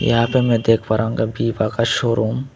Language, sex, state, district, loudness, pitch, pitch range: Hindi, male, Tripura, West Tripura, -18 LUFS, 115 Hz, 110-120 Hz